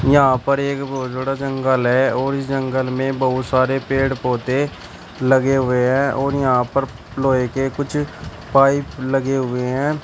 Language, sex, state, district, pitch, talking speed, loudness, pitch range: Hindi, male, Uttar Pradesh, Shamli, 135 Hz, 160 wpm, -19 LUFS, 130-135 Hz